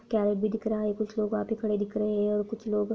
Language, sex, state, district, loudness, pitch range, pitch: Hindi, female, Bihar, Purnia, -29 LUFS, 210-220 Hz, 215 Hz